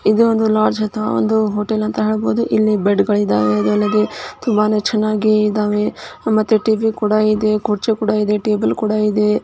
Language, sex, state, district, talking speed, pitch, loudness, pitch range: Kannada, female, Karnataka, Dharwad, 160 wpm, 215 Hz, -16 LUFS, 210-215 Hz